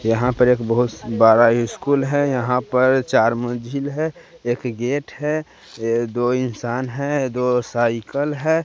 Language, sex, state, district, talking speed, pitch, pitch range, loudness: Hindi, male, Bihar, West Champaran, 160 wpm, 125 Hz, 120-140 Hz, -20 LUFS